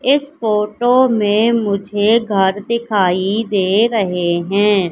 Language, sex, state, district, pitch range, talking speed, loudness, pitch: Hindi, female, Madhya Pradesh, Katni, 195-230 Hz, 110 wpm, -15 LUFS, 210 Hz